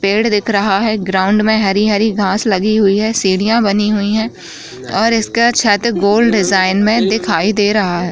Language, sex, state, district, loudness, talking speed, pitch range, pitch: Hindi, female, Bihar, Jahanabad, -13 LUFS, 185 wpm, 200-220 Hz, 210 Hz